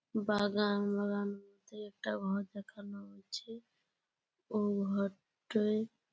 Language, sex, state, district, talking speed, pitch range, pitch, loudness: Bengali, female, West Bengal, Jalpaiguri, 80 wpm, 200-210 Hz, 205 Hz, -36 LUFS